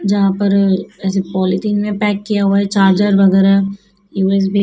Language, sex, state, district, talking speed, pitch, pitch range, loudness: Hindi, female, Madhya Pradesh, Dhar, 170 wpm, 195 Hz, 195-205 Hz, -14 LUFS